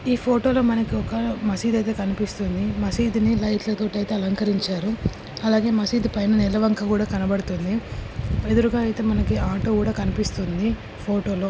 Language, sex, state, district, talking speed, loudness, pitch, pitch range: Telugu, female, Andhra Pradesh, Srikakulam, 130 wpm, -23 LUFS, 215 Hz, 200-225 Hz